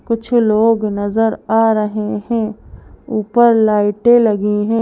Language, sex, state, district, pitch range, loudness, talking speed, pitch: Hindi, female, Madhya Pradesh, Bhopal, 210-230 Hz, -15 LUFS, 135 wpm, 220 Hz